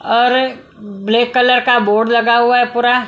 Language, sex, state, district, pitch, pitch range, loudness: Hindi, female, Punjab, Kapurthala, 240 Hz, 235-250 Hz, -13 LUFS